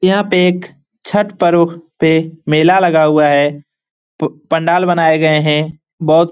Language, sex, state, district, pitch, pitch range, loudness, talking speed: Hindi, male, Bihar, Lakhisarai, 165 Hz, 155-180 Hz, -13 LUFS, 160 wpm